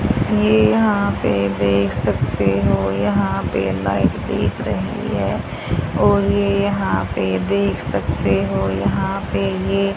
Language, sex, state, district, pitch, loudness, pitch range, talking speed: Hindi, female, Haryana, Charkhi Dadri, 100 Hz, -19 LUFS, 95-100 Hz, 130 wpm